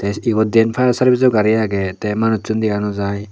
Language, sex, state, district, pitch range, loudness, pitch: Chakma, male, Tripura, Unakoti, 105-115 Hz, -16 LUFS, 110 Hz